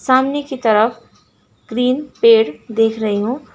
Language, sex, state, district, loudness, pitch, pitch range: Hindi, female, West Bengal, Alipurduar, -16 LUFS, 230 Hz, 220-260 Hz